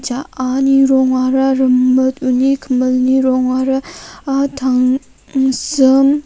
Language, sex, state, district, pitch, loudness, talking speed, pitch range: Garo, female, Meghalaya, North Garo Hills, 265 Hz, -14 LUFS, 85 wpm, 255-270 Hz